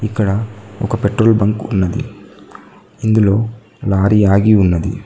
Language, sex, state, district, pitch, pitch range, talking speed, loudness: Telugu, male, Telangana, Mahabubabad, 105 Hz, 100-110 Hz, 105 wpm, -15 LUFS